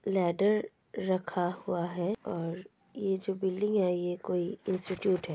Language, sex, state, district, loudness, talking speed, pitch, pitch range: Hindi, female, Uttar Pradesh, Ghazipur, -32 LUFS, 145 wpm, 185 Hz, 175-195 Hz